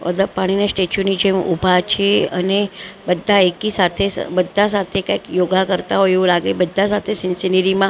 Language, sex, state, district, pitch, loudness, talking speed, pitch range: Gujarati, female, Maharashtra, Mumbai Suburban, 190 Hz, -17 LUFS, 165 wpm, 180-200 Hz